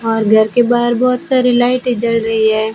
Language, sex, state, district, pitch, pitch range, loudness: Hindi, female, Rajasthan, Bikaner, 240 Hz, 220-245 Hz, -13 LUFS